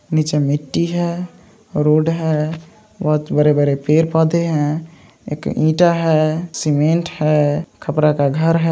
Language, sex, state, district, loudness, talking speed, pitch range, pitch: Hindi, male, Andhra Pradesh, Krishna, -17 LUFS, 125 wpm, 150-165 Hz, 155 Hz